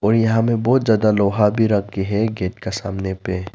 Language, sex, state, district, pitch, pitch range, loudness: Hindi, male, Arunachal Pradesh, Lower Dibang Valley, 105 Hz, 95-110 Hz, -19 LUFS